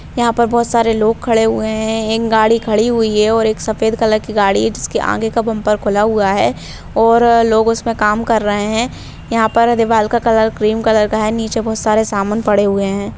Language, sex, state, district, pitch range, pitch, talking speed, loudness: Bhojpuri, female, Bihar, Saran, 215-230 Hz, 220 Hz, 230 wpm, -14 LUFS